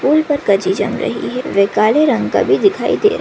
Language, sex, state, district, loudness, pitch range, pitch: Hindi, male, Maharashtra, Chandrapur, -15 LUFS, 200-305 Hz, 250 Hz